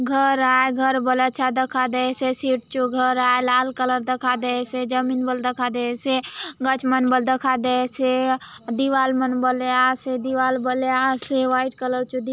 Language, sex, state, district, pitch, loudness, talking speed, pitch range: Halbi, female, Chhattisgarh, Bastar, 255 Hz, -21 LUFS, 170 wpm, 255-260 Hz